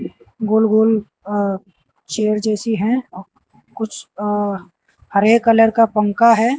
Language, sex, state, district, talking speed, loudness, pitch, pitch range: Hindi, male, Haryana, Jhajjar, 120 wpm, -17 LUFS, 215 Hz, 200-225 Hz